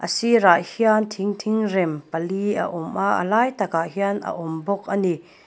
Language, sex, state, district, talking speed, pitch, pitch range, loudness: Mizo, female, Mizoram, Aizawl, 175 wpm, 200 Hz, 170-215 Hz, -22 LUFS